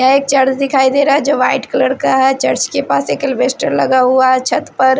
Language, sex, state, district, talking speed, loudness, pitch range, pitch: Hindi, female, Odisha, Sambalpur, 265 wpm, -13 LUFS, 260-275 Hz, 265 Hz